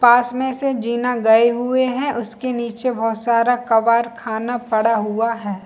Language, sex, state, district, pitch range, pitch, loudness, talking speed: Hindi, female, Chhattisgarh, Bilaspur, 225-245 Hz, 235 Hz, -18 LUFS, 170 wpm